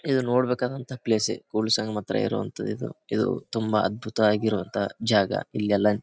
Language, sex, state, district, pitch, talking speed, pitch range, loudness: Kannada, male, Karnataka, Bijapur, 110 Hz, 140 wpm, 105-125 Hz, -26 LUFS